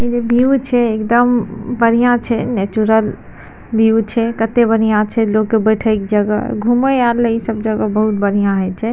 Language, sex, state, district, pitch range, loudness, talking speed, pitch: Maithili, female, Bihar, Madhepura, 215-240 Hz, -15 LUFS, 175 wpm, 225 Hz